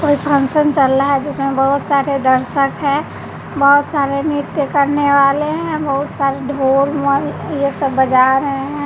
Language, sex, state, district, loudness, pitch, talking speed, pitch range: Hindi, female, Bihar, West Champaran, -15 LUFS, 280 Hz, 170 wpm, 275-290 Hz